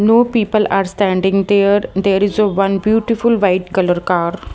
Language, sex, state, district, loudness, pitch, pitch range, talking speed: English, female, Haryana, Jhajjar, -15 LUFS, 200 Hz, 190-215 Hz, 170 wpm